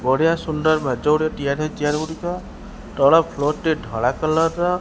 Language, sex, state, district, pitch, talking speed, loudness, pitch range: Odia, male, Odisha, Khordha, 155 Hz, 175 wpm, -20 LUFS, 145-165 Hz